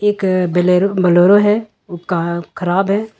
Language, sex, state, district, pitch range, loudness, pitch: Hindi, female, Jharkhand, Ranchi, 175-205 Hz, -14 LUFS, 185 Hz